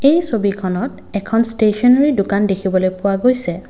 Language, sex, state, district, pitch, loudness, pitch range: Assamese, male, Assam, Kamrup Metropolitan, 205 Hz, -16 LUFS, 190-245 Hz